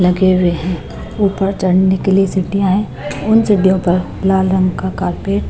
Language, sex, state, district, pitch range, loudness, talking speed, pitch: Hindi, female, Chhattisgarh, Raipur, 175-195 Hz, -15 LUFS, 185 wpm, 190 Hz